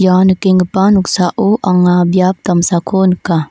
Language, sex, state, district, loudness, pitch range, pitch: Garo, female, Meghalaya, North Garo Hills, -12 LUFS, 180-190 Hz, 185 Hz